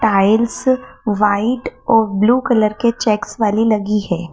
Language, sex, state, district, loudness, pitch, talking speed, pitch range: Hindi, female, Madhya Pradesh, Dhar, -16 LUFS, 220 Hz, 140 wpm, 210-240 Hz